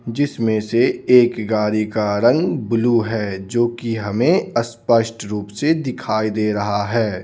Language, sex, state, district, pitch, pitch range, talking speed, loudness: Hindi, male, Bihar, Patna, 115 Hz, 105-120 Hz, 150 wpm, -18 LUFS